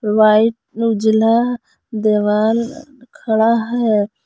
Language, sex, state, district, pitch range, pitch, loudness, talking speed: Hindi, female, Jharkhand, Palamu, 215-235 Hz, 225 Hz, -16 LUFS, 70 wpm